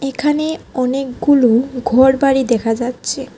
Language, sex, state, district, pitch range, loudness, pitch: Bengali, female, Tripura, West Tripura, 245-275 Hz, -15 LUFS, 260 Hz